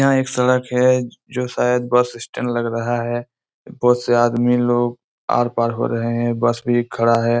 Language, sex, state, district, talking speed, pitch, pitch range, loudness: Hindi, male, Bihar, Araria, 185 wpm, 120 Hz, 120-125 Hz, -19 LUFS